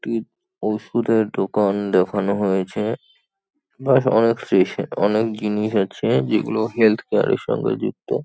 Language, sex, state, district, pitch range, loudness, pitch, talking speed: Bengali, male, West Bengal, North 24 Parganas, 100-115 Hz, -20 LUFS, 110 Hz, 110 wpm